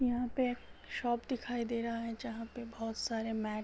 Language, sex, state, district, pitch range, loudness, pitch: Hindi, male, Uttar Pradesh, Gorakhpur, 225-245 Hz, -37 LUFS, 235 Hz